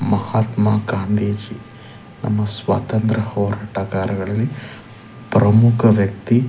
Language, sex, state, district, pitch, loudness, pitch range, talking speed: Kannada, male, Karnataka, Chamarajanagar, 110 Hz, -18 LUFS, 105-115 Hz, 75 wpm